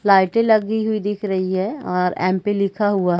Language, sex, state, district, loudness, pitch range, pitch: Hindi, female, Chhattisgarh, Bilaspur, -19 LUFS, 185-210 Hz, 200 Hz